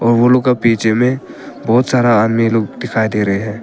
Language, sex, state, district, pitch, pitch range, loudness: Hindi, male, Arunachal Pradesh, Papum Pare, 115 Hz, 110-125 Hz, -14 LUFS